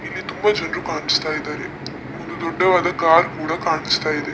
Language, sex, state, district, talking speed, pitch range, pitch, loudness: Kannada, male, Karnataka, Dakshina Kannada, 150 wpm, 165-185 Hz, 170 Hz, -19 LUFS